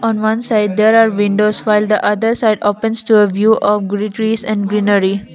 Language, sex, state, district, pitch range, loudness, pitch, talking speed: English, female, Assam, Kamrup Metropolitan, 205-220 Hz, -14 LUFS, 215 Hz, 180 wpm